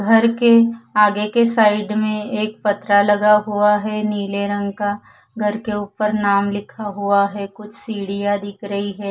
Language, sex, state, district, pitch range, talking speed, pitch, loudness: Hindi, female, Odisha, Khordha, 205-215 Hz, 170 wpm, 210 Hz, -18 LUFS